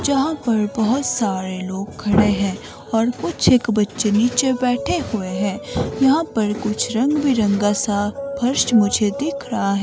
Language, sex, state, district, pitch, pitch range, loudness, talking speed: Hindi, female, Himachal Pradesh, Shimla, 220 Hz, 205-260 Hz, -19 LUFS, 150 wpm